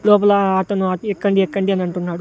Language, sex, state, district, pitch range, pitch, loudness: Telugu, male, Andhra Pradesh, Sri Satya Sai, 185-200 Hz, 195 Hz, -17 LUFS